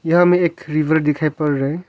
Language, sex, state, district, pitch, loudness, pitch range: Hindi, male, Arunachal Pradesh, Longding, 155 Hz, -17 LUFS, 150-170 Hz